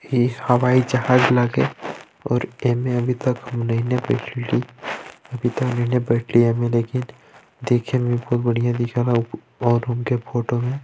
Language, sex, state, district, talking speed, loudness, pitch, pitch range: Chhattisgarhi, male, Chhattisgarh, Balrampur, 105 wpm, -21 LUFS, 120 Hz, 120-125 Hz